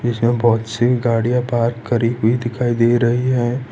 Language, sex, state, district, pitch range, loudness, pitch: Hindi, male, Gujarat, Valsad, 115-120 Hz, -17 LUFS, 120 Hz